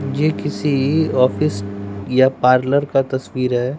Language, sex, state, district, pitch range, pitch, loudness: Hindi, male, Bihar, West Champaran, 125-140 Hz, 130 Hz, -18 LUFS